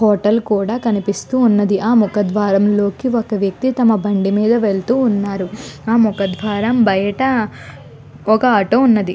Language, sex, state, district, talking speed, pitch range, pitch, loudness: Telugu, female, Andhra Pradesh, Guntur, 140 wpm, 200-230 Hz, 210 Hz, -15 LUFS